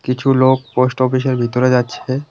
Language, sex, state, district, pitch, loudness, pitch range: Bengali, male, West Bengal, Cooch Behar, 130 Hz, -15 LUFS, 125-130 Hz